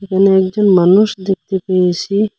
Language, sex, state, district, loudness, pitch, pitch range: Bengali, male, Assam, Hailakandi, -13 LUFS, 190 Hz, 185-200 Hz